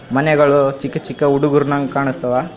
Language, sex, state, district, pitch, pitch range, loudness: Kannada, male, Karnataka, Raichur, 140 Hz, 135-145 Hz, -16 LUFS